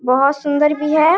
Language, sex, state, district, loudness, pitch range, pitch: Hindi, female, Bihar, Darbhanga, -16 LUFS, 280-305 Hz, 295 Hz